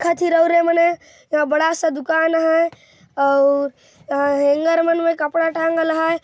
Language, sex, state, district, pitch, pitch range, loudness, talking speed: Chhattisgarhi, male, Chhattisgarh, Jashpur, 325 Hz, 300-335 Hz, -18 LUFS, 115 wpm